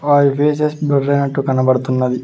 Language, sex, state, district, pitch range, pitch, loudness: Telugu, male, Telangana, Mahabubabad, 130-145 Hz, 140 Hz, -16 LUFS